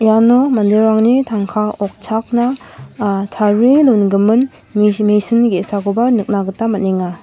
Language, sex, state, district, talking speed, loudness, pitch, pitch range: Garo, female, Meghalaya, West Garo Hills, 100 wpm, -14 LUFS, 215 Hz, 200-235 Hz